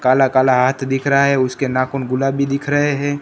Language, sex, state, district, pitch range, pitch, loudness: Hindi, male, Gujarat, Gandhinagar, 130-140 Hz, 135 Hz, -16 LUFS